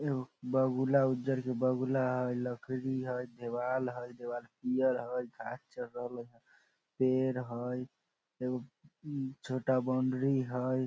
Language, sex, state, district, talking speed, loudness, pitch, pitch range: Maithili, male, Bihar, Samastipur, 130 wpm, -34 LUFS, 130 Hz, 125-130 Hz